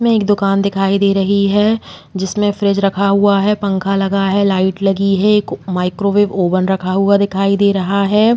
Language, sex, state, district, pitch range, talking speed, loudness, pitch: Hindi, female, Uttar Pradesh, Muzaffarnagar, 195-200 Hz, 195 wpm, -14 LUFS, 200 Hz